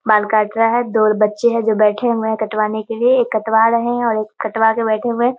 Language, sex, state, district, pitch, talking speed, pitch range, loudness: Hindi, female, Bihar, Muzaffarpur, 220 Hz, 290 wpm, 215-235 Hz, -16 LUFS